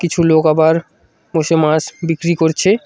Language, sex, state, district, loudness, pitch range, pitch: Bengali, male, West Bengal, Cooch Behar, -14 LUFS, 160-170 Hz, 165 Hz